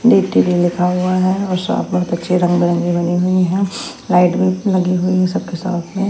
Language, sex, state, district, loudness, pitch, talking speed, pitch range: Hindi, female, Delhi, New Delhi, -16 LUFS, 180 Hz, 175 wpm, 175-190 Hz